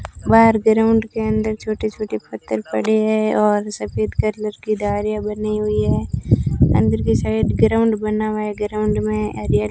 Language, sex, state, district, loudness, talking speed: Hindi, female, Rajasthan, Bikaner, -19 LUFS, 165 wpm